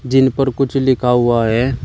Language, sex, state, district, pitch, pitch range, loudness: Hindi, male, Uttar Pradesh, Shamli, 130 Hz, 120-135 Hz, -15 LUFS